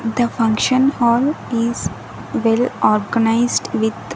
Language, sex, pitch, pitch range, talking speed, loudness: English, female, 235 Hz, 225-245 Hz, 115 wpm, -17 LUFS